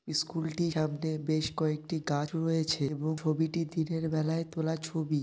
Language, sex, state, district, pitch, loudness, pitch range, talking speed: Bengali, male, West Bengal, North 24 Parganas, 160 Hz, -32 LUFS, 155-165 Hz, 160 wpm